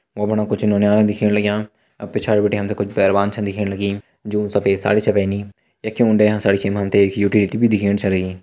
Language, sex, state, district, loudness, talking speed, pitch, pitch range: Hindi, male, Uttarakhand, Tehri Garhwal, -18 LUFS, 170 wpm, 105 Hz, 100-105 Hz